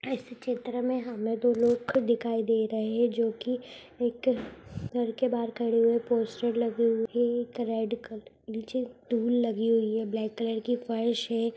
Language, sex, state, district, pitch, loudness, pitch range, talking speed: Hindi, female, Chhattisgarh, Raigarh, 235 Hz, -29 LUFS, 225-240 Hz, 160 wpm